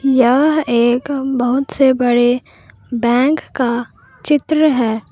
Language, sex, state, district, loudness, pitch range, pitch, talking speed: Hindi, female, Jharkhand, Palamu, -15 LUFS, 240-275 Hz, 255 Hz, 105 wpm